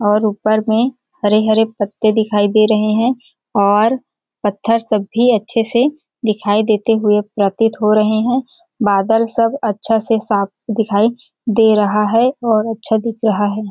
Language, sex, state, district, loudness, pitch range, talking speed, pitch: Hindi, female, Chhattisgarh, Balrampur, -15 LUFS, 210-230 Hz, 160 wpm, 220 Hz